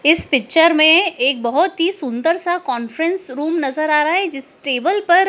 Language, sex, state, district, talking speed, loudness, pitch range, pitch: Hindi, female, Madhya Pradesh, Dhar, 195 wpm, -16 LUFS, 270-345 Hz, 315 Hz